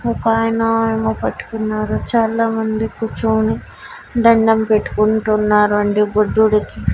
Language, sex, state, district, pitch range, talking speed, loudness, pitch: Telugu, female, Andhra Pradesh, Annamaya, 215-225 Hz, 80 wpm, -16 LUFS, 220 Hz